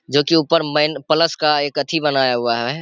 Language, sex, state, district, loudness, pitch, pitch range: Hindi, male, Bihar, Saharsa, -17 LUFS, 150 Hz, 140-160 Hz